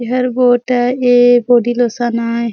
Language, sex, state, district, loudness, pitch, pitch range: Surgujia, female, Chhattisgarh, Sarguja, -13 LUFS, 245 Hz, 240-245 Hz